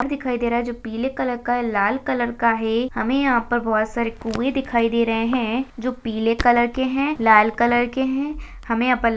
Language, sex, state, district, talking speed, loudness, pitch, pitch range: Hindi, female, Chhattisgarh, Jashpur, 215 wpm, -21 LUFS, 240 Hz, 230-255 Hz